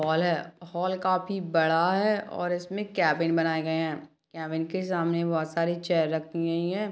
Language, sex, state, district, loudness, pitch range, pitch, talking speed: Hindi, female, Chhattisgarh, Kabirdham, -27 LUFS, 160-185 Hz, 170 Hz, 180 wpm